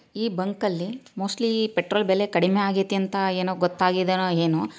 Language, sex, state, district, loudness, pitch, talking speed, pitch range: Kannada, female, Karnataka, Chamarajanagar, -24 LUFS, 195 Hz, 140 wpm, 185-205 Hz